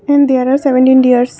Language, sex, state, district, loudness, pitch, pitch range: English, female, Assam, Kamrup Metropolitan, -10 LUFS, 260 Hz, 255-275 Hz